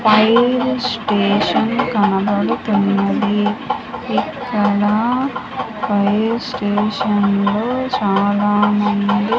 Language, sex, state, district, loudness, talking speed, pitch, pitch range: Telugu, female, Andhra Pradesh, Manyam, -17 LUFS, 50 wpm, 210 Hz, 205-245 Hz